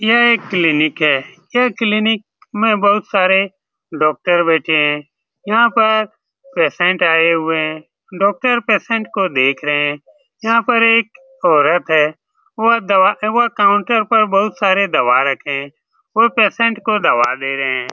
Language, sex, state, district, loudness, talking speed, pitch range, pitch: Hindi, male, Bihar, Saran, -15 LUFS, 160 wpm, 155-230 Hz, 200 Hz